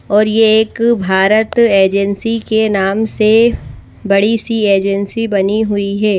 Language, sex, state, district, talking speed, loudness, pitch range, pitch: Hindi, female, Madhya Pradesh, Bhopal, 135 wpm, -12 LUFS, 200-225 Hz, 215 Hz